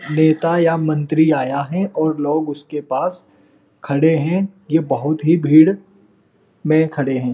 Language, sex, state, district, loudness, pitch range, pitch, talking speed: Hindi, male, Uttar Pradesh, Muzaffarnagar, -17 LUFS, 145-165 Hz, 155 Hz, 145 wpm